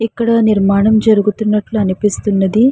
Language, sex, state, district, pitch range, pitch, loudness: Telugu, female, Andhra Pradesh, Srikakulam, 205-220 Hz, 210 Hz, -13 LUFS